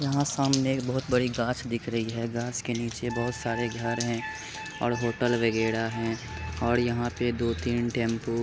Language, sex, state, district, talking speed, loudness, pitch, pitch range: Hindi, male, Bihar, Jamui, 165 wpm, -28 LUFS, 120 Hz, 115-125 Hz